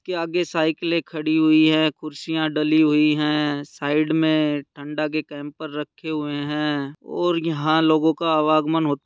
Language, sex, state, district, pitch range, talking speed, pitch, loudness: Hindi, female, Bihar, Darbhanga, 150-160 Hz, 150 wpm, 155 Hz, -21 LUFS